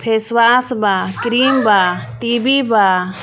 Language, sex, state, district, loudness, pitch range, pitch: Bhojpuri, female, Jharkhand, Palamu, -14 LUFS, 195-240 Hz, 230 Hz